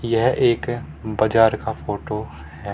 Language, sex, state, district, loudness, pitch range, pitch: Hindi, male, Haryana, Rohtak, -21 LUFS, 100-110 Hz, 110 Hz